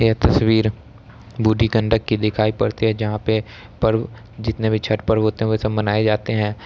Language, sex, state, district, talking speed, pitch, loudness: Maithili, male, Bihar, Samastipur, 205 wpm, 110 Hz, -19 LUFS